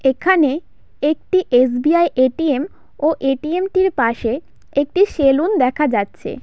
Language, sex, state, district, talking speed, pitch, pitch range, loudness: Bengali, female, West Bengal, Paschim Medinipur, 175 wpm, 295 Hz, 265-345 Hz, -17 LUFS